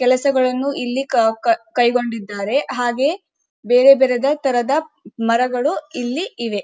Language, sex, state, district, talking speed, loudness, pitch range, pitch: Kannada, female, Karnataka, Dharwad, 90 wpm, -18 LUFS, 240-280 Hz, 255 Hz